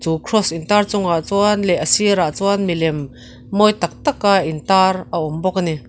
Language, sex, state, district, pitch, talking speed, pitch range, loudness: Mizo, female, Mizoram, Aizawl, 185 Hz, 205 wpm, 160-200 Hz, -17 LUFS